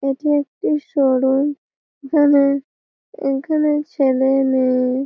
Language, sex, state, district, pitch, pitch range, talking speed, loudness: Bengali, female, West Bengal, Malda, 275 Hz, 265-295 Hz, 85 wpm, -18 LUFS